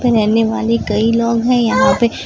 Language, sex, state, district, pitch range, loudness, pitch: Hindi, female, Maharashtra, Gondia, 225-245 Hz, -14 LUFS, 230 Hz